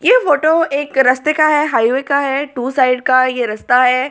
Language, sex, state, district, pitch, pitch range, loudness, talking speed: Hindi, female, Delhi, New Delhi, 265 Hz, 250-295 Hz, -14 LUFS, 220 wpm